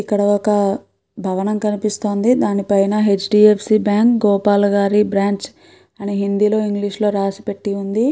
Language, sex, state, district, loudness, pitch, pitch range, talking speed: Telugu, female, Andhra Pradesh, Guntur, -17 LUFS, 205 Hz, 200-210 Hz, 155 wpm